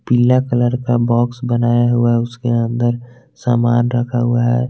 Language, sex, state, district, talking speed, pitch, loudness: Hindi, male, Jharkhand, Garhwa, 165 wpm, 120 Hz, -16 LUFS